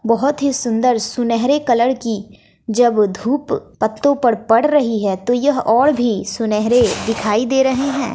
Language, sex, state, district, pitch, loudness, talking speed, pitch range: Hindi, female, Bihar, West Champaran, 240 Hz, -16 LUFS, 160 wpm, 225-265 Hz